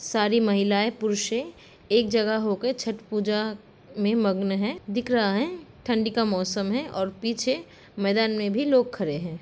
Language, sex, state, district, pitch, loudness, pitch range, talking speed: Hindi, female, Uttar Pradesh, Jalaun, 215 Hz, -25 LUFS, 205-230 Hz, 165 wpm